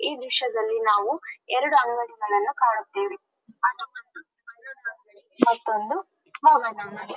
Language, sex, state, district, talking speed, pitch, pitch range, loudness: Kannada, female, Karnataka, Dharwad, 65 wpm, 235 Hz, 215-290 Hz, -24 LUFS